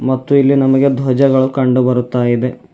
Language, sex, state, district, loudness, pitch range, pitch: Kannada, male, Karnataka, Bidar, -13 LUFS, 125-135 Hz, 130 Hz